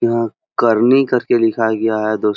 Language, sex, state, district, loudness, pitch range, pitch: Hindi, male, Bihar, Jahanabad, -15 LUFS, 110-120 Hz, 115 Hz